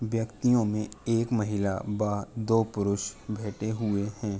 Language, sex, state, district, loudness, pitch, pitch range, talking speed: Hindi, male, Uttar Pradesh, Jalaun, -29 LUFS, 105 Hz, 105-115 Hz, 135 wpm